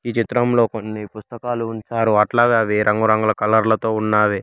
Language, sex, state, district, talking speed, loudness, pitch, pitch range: Telugu, male, Telangana, Hyderabad, 165 wpm, -18 LUFS, 110 Hz, 105-115 Hz